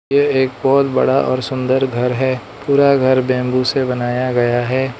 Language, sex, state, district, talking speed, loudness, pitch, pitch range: Hindi, male, Arunachal Pradesh, Lower Dibang Valley, 180 wpm, -16 LUFS, 130 Hz, 125-135 Hz